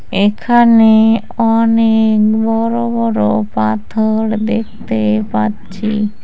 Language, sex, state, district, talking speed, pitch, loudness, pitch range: Bengali, female, West Bengal, Cooch Behar, 65 wpm, 220 Hz, -13 LUFS, 190-225 Hz